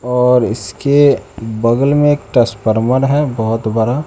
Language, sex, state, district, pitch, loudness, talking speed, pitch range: Hindi, male, Bihar, West Champaran, 125 Hz, -14 LUFS, 135 wpm, 110-140 Hz